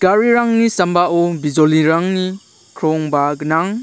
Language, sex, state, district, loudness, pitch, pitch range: Garo, male, Meghalaya, South Garo Hills, -15 LUFS, 175 Hz, 155-190 Hz